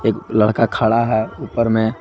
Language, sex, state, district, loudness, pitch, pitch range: Hindi, male, Jharkhand, Garhwa, -17 LUFS, 110 Hz, 110-115 Hz